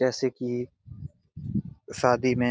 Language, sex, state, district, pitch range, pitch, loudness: Hindi, male, Jharkhand, Jamtara, 125-130 Hz, 125 Hz, -27 LUFS